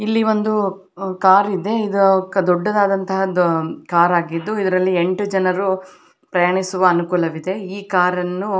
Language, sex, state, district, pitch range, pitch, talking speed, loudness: Kannada, female, Karnataka, Bellary, 180-200 Hz, 190 Hz, 100 wpm, -18 LUFS